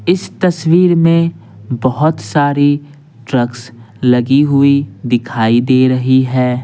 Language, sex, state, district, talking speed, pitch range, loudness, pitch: Hindi, male, Bihar, Patna, 110 wpm, 125-150 Hz, -13 LUFS, 130 Hz